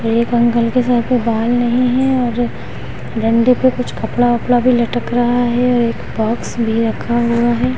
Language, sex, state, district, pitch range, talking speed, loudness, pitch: Hindi, female, Bihar, Muzaffarpur, 235-245 Hz, 185 wpm, -15 LUFS, 240 Hz